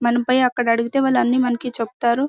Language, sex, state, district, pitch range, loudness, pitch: Telugu, female, Karnataka, Bellary, 235-255 Hz, -19 LUFS, 245 Hz